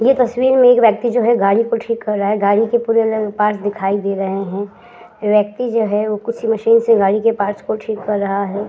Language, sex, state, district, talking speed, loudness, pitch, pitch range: Hindi, female, Uttar Pradesh, Hamirpur, 255 wpm, -16 LUFS, 215 Hz, 205-230 Hz